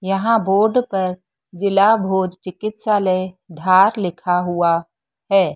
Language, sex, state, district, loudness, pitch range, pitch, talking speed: Hindi, female, Madhya Pradesh, Dhar, -18 LUFS, 180-200 Hz, 190 Hz, 110 wpm